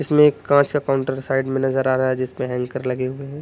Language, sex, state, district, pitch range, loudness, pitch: Hindi, male, Uttar Pradesh, Budaun, 130-140 Hz, -20 LUFS, 135 Hz